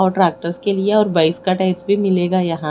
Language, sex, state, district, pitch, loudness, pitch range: Hindi, female, Odisha, Khordha, 185 Hz, -17 LUFS, 175-200 Hz